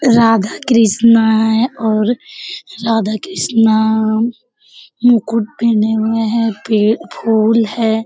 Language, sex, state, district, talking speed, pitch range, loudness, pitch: Hindi, female, Bihar, Jamui, 95 wpm, 220-235 Hz, -14 LUFS, 225 Hz